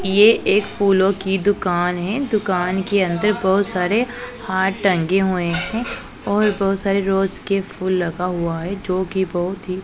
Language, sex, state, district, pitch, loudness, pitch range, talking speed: Hindi, female, Punjab, Pathankot, 190 Hz, -19 LUFS, 185-200 Hz, 170 wpm